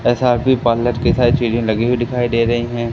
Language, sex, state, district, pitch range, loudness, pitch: Hindi, male, Madhya Pradesh, Katni, 115-125 Hz, -16 LUFS, 120 Hz